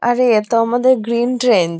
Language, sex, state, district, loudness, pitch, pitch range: Bengali, female, West Bengal, Kolkata, -15 LUFS, 240 Hz, 230-245 Hz